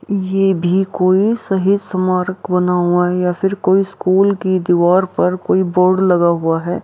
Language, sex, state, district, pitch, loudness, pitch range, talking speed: Hindi, female, Bihar, Araria, 185 Hz, -15 LUFS, 180-195 Hz, 175 wpm